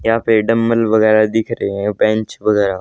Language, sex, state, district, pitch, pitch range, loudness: Hindi, male, Haryana, Rohtak, 110 Hz, 105-115 Hz, -15 LUFS